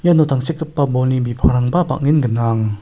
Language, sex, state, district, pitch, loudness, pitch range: Garo, male, Meghalaya, South Garo Hills, 135 Hz, -17 LUFS, 120-155 Hz